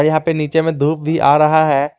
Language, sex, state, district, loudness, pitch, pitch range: Hindi, male, Jharkhand, Garhwa, -14 LUFS, 155 Hz, 150-160 Hz